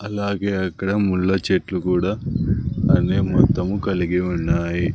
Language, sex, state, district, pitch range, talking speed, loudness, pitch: Telugu, male, Andhra Pradesh, Sri Satya Sai, 90-100 Hz, 110 wpm, -20 LUFS, 95 Hz